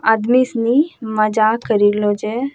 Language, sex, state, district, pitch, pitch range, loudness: Angika, female, Bihar, Bhagalpur, 225 Hz, 215-245 Hz, -16 LUFS